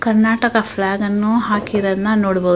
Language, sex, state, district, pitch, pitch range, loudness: Kannada, female, Karnataka, Mysore, 210 Hz, 195-225 Hz, -17 LUFS